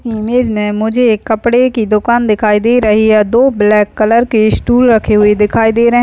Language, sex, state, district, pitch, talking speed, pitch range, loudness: Hindi, female, West Bengal, Dakshin Dinajpur, 220 Hz, 220 wpm, 210-235 Hz, -11 LUFS